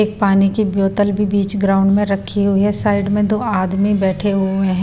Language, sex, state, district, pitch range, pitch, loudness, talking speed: Hindi, female, Bihar, Patna, 195-205 Hz, 200 Hz, -16 LUFS, 225 wpm